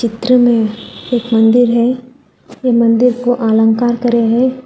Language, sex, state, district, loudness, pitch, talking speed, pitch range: Hindi, female, Telangana, Hyderabad, -12 LUFS, 240 Hz, 140 wpm, 230-250 Hz